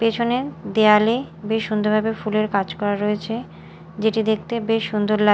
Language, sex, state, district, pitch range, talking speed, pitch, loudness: Bengali, female, Odisha, Malkangiri, 210-225 Hz, 145 wpm, 215 Hz, -21 LUFS